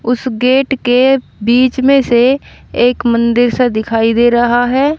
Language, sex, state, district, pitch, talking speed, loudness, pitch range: Hindi, female, Haryana, Rohtak, 245 Hz, 155 wpm, -12 LUFS, 240-260 Hz